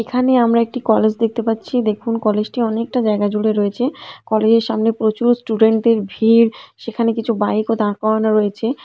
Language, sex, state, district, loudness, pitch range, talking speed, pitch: Bengali, female, West Bengal, Kolkata, -17 LUFS, 215-230 Hz, 185 wpm, 225 Hz